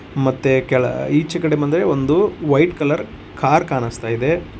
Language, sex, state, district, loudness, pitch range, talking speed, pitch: Kannada, male, Karnataka, Koppal, -18 LUFS, 130-155 Hz, 145 wpm, 145 Hz